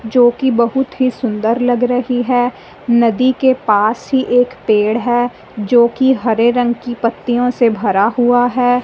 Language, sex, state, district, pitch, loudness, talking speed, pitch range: Hindi, female, Punjab, Fazilka, 245 Hz, -14 LUFS, 155 wpm, 230-250 Hz